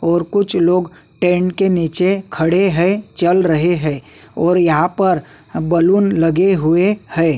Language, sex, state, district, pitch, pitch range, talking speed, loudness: Hindi, male, Uttarakhand, Tehri Garhwal, 175 Hz, 165-190 Hz, 145 wpm, -15 LUFS